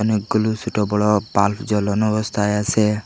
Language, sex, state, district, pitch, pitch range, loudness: Bengali, male, Assam, Hailakandi, 105 Hz, 105-110 Hz, -19 LUFS